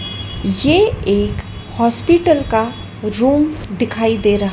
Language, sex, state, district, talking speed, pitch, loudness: Hindi, female, Madhya Pradesh, Dhar, 105 wpm, 225 Hz, -16 LUFS